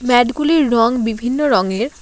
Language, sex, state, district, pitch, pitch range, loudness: Bengali, female, West Bengal, Alipurduar, 245 Hz, 230-290 Hz, -15 LUFS